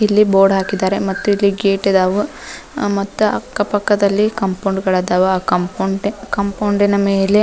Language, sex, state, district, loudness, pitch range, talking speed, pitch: Kannada, female, Karnataka, Dharwad, -16 LUFS, 195-205 Hz, 120 wpm, 200 Hz